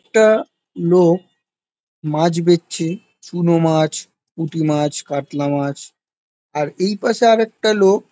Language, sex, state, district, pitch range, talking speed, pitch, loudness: Bengali, male, West Bengal, Jalpaiguri, 155-195 Hz, 120 wpm, 170 Hz, -17 LUFS